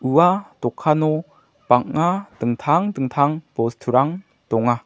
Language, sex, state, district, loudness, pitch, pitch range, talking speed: Garo, male, Meghalaya, West Garo Hills, -20 LUFS, 145 Hz, 125-165 Hz, 85 wpm